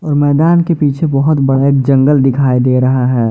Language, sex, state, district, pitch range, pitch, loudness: Hindi, male, Jharkhand, Ranchi, 130-145 Hz, 140 Hz, -11 LUFS